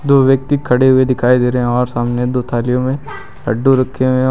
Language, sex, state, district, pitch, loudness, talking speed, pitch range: Hindi, male, Uttar Pradesh, Lucknow, 130 Hz, -14 LUFS, 235 wpm, 125-130 Hz